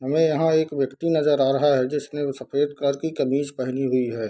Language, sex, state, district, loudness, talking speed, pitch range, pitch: Hindi, male, Bihar, Darbhanga, -23 LUFS, 225 wpm, 135-150 Hz, 140 Hz